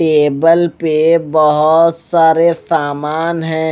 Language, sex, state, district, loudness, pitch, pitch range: Hindi, male, Odisha, Malkangiri, -12 LUFS, 160 Hz, 155-165 Hz